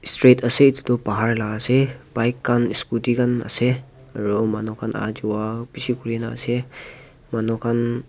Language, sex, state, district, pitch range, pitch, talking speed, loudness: Nagamese, male, Nagaland, Dimapur, 115-125 Hz, 120 Hz, 170 wpm, -21 LUFS